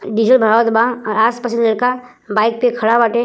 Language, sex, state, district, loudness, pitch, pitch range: Bhojpuri, female, Uttar Pradesh, Gorakhpur, -15 LUFS, 230 Hz, 225-245 Hz